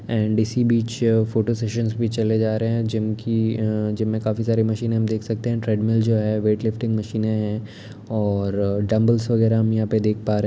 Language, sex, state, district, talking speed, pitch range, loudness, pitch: Hindi, male, Uttar Pradesh, Etah, 220 wpm, 110-115 Hz, -22 LUFS, 110 Hz